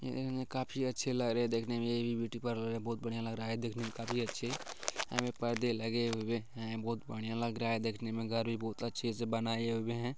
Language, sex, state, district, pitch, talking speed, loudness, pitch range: Maithili, male, Bihar, Kishanganj, 115 Hz, 255 wpm, -37 LUFS, 115-120 Hz